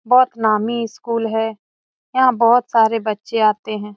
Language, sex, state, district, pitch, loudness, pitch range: Hindi, female, Bihar, Jamui, 225 Hz, -17 LUFS, 215-235 Hz